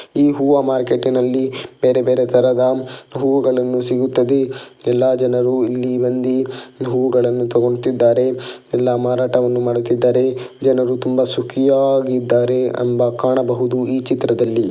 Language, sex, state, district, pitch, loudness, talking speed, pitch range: Kannada, male, Karnataka, Dakshina Kannada, 125 Hz, -17 LUFS, 100 wpm, 125-130 Hz